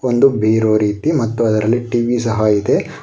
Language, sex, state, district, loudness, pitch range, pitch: Kannada, male, Karnataka, Bangalore, -15 LUFS, 110-120 Hz, 115 Hz